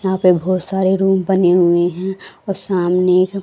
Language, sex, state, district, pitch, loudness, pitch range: Hindi, female, Haryana, Rohtak, 185 Hz, -16 LUFS, 180-190 Hz